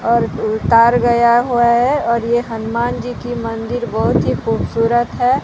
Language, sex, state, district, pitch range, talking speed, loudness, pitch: Hindi, female, Odisha, Sambalpur, 230-240 Hz, 155 wpm, -16 LUFS, 235 Hz